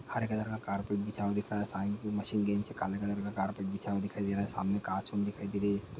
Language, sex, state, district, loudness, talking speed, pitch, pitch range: Hindi, male, Chhattisgarh, Jashpur, -35 LUFS, 320 wpm, 100 Hz, 100-105 Hz